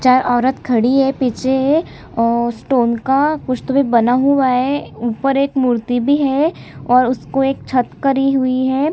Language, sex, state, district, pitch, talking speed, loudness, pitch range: Hindi, female, Chhattisgarh, Sukma, 260 Hz, 170 wpm, -16 LUFS, 245-275 Hz